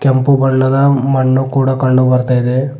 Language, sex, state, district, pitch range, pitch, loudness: Kannada, male, Karnataka, Bidar, 130-135 Hz, 130 Hz, -12 LUFS